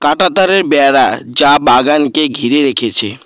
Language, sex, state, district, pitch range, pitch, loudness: Bengali, male, West Bengal, Alipurduar, 125-150 Hz, 145 Hz, -10 LUFS